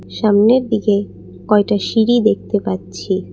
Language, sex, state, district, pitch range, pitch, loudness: Bengali, female, Assam, Kamrup Metropolitan, 205-220 Hz, 210 Hz, -16 LUFS